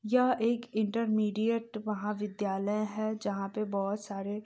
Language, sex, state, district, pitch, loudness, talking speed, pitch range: Hindi, female, Bihar, East Champaran, 215 Hz, -32 LUFS, 135 wpm, 205-220 Hz